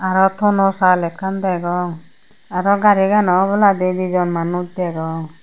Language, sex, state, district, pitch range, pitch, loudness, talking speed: Chakma, female, Tripura, Unakoti, 175-195 Hz, 185 Hz, -17 LUFS, 120 wpm